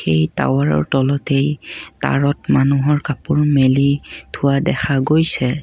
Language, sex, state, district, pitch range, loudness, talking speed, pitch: Assamese, male, Assam, Kamrup Metropolitan, 130-145 Hz, -16 LUFS, 105 wpm, 140 Hz